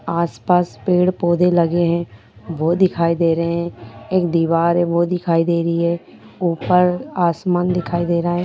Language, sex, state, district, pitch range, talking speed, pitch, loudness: Hindi, female, Bihar, Sitamarhi, 170-180 Hz, 180 wpm, 170 Hz, -18 LUFS